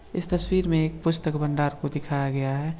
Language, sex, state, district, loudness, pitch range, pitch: Hindi, male, Bihar, Madhepura, -26 LUFS, 145-165 Hz, 155 Hz